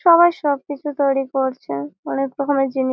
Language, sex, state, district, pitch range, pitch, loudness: Bengali, female, West Bengal, Malda, 265-290 Hz, 275 Hz, -20 LUFS